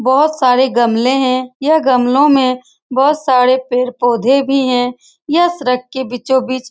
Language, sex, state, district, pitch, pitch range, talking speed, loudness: Hindi, female, Bihar, Saran, 255 Hz, 250-270 Hz, 150 wpm, -13 LUFS